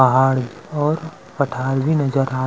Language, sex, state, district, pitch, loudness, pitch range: Chhattisgarhi, male, Chhattisgarh, Rajnandgaon, 135 Hz, -20 LUFS, 130-150 Hz